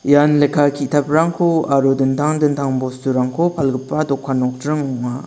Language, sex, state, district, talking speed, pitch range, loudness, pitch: Garo, male, Meghalaya, West Garo Hills, 125 wpm, 130-150 Hz, -17 LUFS, 140 Hz